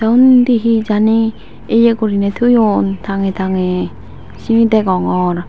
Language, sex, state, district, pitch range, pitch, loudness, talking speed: Chakma, female, Tripura, Dhalai, 195-230 Hz, 220 Hz, -13 LUFS, 110 wpm